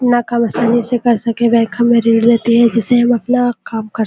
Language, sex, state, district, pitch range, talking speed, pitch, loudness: Hindi, female, Chhattisgarh, Bilaspur, 230-240 Hz, 205 wpm, 235 Hz, -13 LUFS